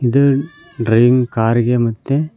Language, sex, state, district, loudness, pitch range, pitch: Kannada, male, Karnataka, Koppal, -15 LUFS, 115-140 Hz, 125 Hz